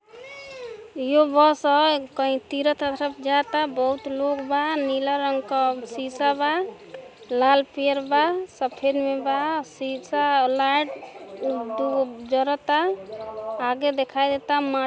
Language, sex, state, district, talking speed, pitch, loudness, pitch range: Hindi, female, Uttar Pradesh, Gorakhpur, 130 wpm, 275 Hz, -23 LUFS, 265-290 Hz